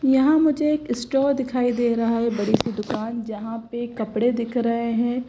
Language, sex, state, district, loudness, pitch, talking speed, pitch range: Hindi, female, Gujarat, Gandhinagar, -22 LUFS, 240 Hz, 195 wpm, 230-255 Hz